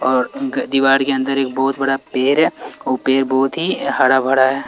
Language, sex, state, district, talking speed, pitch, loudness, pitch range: Hindi, male, Bihar, Patna, 205 wpm, 135 Hz, -17 LUFS, 130-135 Hz